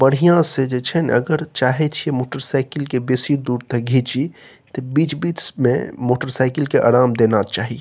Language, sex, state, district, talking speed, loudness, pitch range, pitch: Maithili, male, Bihar, Saharsa, 170 wpm, -18 LUFS, 125-150 Hz, 135 Hz